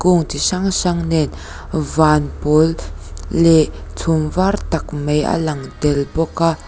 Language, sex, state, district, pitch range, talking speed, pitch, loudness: Mizo, female, Mizoram, Aizawl, 150-165 Hz, 155 wpm, 155 Hz, -17 LUFS